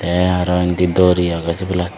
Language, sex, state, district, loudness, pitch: Chakma, male, Tripura, Dhalai, -16 LUFS, 90 Hz